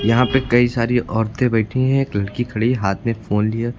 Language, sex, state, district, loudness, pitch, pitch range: Hindi, male, Uttar Pradesh, Lucknow, -19 LUFS, 115 Hz, 110-125 Hz